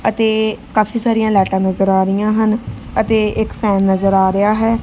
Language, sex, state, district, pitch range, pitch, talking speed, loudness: Punjabi, female, Punjab, Kapurthala, 195-220 Hz, 215 Hz, 185 wpm, -15 LUFS